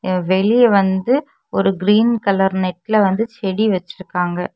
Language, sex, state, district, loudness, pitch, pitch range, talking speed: Tamil, female, Tamil Nadu, Kanyakumari, -17 LUFS, 195 Hz, 185-220 Hz, 120 wpm